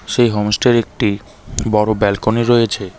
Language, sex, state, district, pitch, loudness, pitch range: Bengali, male, West Bengal, Darjeeling, 110 Hz, -16 LUFS, 100-115 Hz